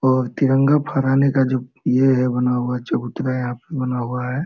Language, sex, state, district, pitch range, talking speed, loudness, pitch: Hindi, male, Jharkhand, Sahebganj, 125-135 Hz, 200 wpm, -19 LUFS, 130 Hz